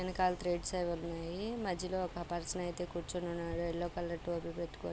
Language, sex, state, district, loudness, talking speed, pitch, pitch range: Telugu, female, Andhra Pradesh, Guntur, -38 LUFS, 170 wpm, 175 Hz, 170-180 Hz